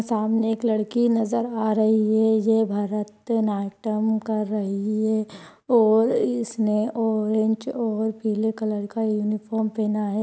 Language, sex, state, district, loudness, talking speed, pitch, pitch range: Hindi, female, Maharashtra, Pune, -23 LUFS, 135 wpm, 220 Hz, 215-225 Hz